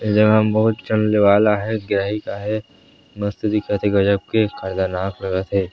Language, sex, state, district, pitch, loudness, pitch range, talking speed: Chhattisgarhi, male, Chhattisgarh, Sarguja, 105 Hz, -19 LUFS, 100-110 Hz, 200 wpm